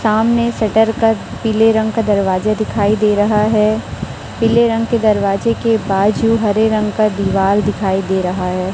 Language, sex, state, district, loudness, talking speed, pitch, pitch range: Hindi, female, Chhattisgarh, Raipur, -15 LUFS, 180 wpm, 215 Hz, 200-225 Hz